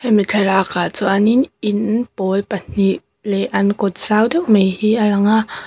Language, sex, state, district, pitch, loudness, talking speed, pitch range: Mizo, female, Mizoram, Aizawl, 205 Hz, -16 LUFS, 190 wpm, 195-220 Hz